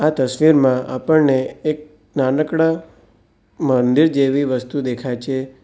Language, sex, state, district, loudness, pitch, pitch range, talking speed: Gujarati, male, Gujarat, Valsad, -18 LUFS, 135 Hz, 125-155 Hz, 95 wpm